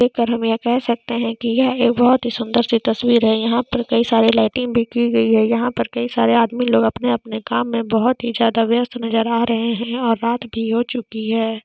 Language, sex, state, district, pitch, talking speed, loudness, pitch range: Hindi, female, Jharkhand, Sahebganj, 235 Hz, 265 wpm, -18 LUFS, 225-240 Hz